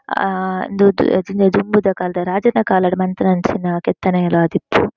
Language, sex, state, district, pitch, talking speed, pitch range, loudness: Tulu, female, Karnataka, Dakshina Kannada, 185 Hz, 110 wpm, 180-200 Hz, -16 LUFS